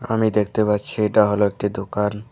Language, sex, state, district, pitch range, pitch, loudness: Bengali, male, West Bengal, Alipurduar, 105-110 Hz, 105 Hz, -20 LUFS